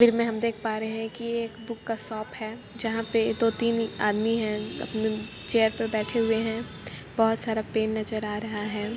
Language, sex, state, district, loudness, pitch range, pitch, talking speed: Hindi, female, Jharkhand, Jamtara, -28 LUFS, 220-230 Hz, 225 Hz, 155 wpm